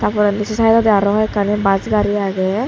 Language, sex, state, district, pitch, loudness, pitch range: Chakma, female, Tripura, Dhalai, 205 Hz, -16 LUFS, 200-215 Hz